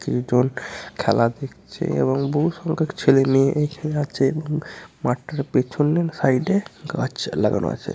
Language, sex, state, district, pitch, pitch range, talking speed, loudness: Bengali, male, West Bengal, Purulia, 145 Hz, 130-155 Hz, 145 wpm, -22 LUFS